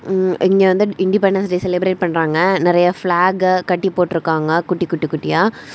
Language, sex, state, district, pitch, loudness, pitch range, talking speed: Tamil, female, Tamil Nadu, Kanyakumari, 180 Hz, -16 LUFS, 175-190 Hz, 155 wpm